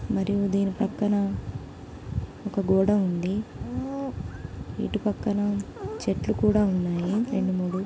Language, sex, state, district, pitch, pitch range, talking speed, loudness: Telugu, female, Telangana, Nalgonda, 200 Hz, 190-210 Hz, 100 wpm, -27 LUFS